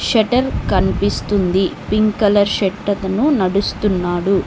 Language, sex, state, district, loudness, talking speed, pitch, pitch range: Telugu, female, Telangana, Mahabubabad, -17 LUFS, 95 wpm, 200 Hz, 190-215 Hz